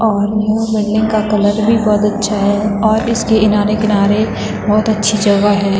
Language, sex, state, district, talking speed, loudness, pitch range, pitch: Hindi, female, Uttarakhand, Tehri Garhwal, 175 wpm, -13 LUFS, 205-215 Hz, 210 Hz